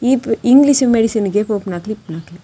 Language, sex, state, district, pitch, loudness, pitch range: Tulu, female, Karnataka, Dakshina Kannada, 215 Hz, -14 LUFS, 195-245 Hz